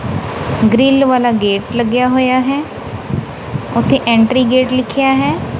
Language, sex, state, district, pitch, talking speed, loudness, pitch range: Punjabi, female, Punjab, Kapurthala, 255 Hz, 120 wpm, -14 LUFS, 235-265 Hz